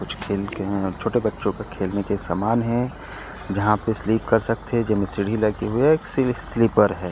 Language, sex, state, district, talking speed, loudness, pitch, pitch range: Chhattisgarhi, male, Chhattisgarh, Korba, 210 wpm, -22 LUFS, 105 Hz, 100-115 Hz